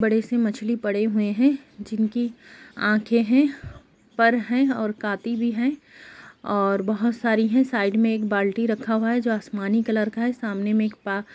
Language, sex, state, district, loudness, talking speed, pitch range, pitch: Hindi, female, Jharkhand, Sahebganj, -23 LUFS, 190 wpm, 210-235 Hz, 225 Hz